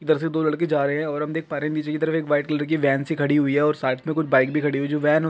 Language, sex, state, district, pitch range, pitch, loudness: Hindi, male, Bihar, Lakhisarai, 145-155 Hz, 150 Hz, -22 LUFS